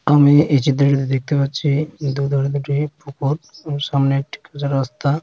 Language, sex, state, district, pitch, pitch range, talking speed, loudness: Bengali, male, West Bengal, Dakshin Dinajpur, 140 Hz, 140-145 Hz, 170 wpm, -18 LUFS